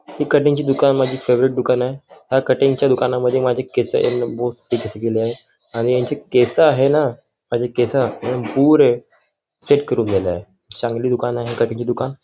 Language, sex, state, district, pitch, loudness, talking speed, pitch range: Marathi, male, Maharashtra, Nagpur, 125 Hz, -18 LUFS, 175 wpm, 120-135 Hz